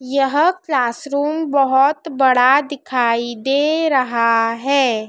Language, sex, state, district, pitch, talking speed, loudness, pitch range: Hindi, female, Madhya Pradesh, Dhar, 270 Hz, 95 wpm, -16 LUFS, 240-290 Hz